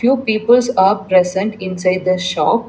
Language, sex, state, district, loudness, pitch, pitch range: English, female, Telangana, Hyderabad, -15 LUFS, 195 Hz, 185-235 Hz